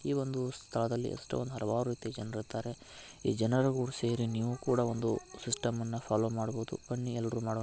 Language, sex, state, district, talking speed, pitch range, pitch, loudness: Kannada, male, Karnataka, Belgaum, 175 wpm, 115-125 Hz, 115 Hz, -35 LUFS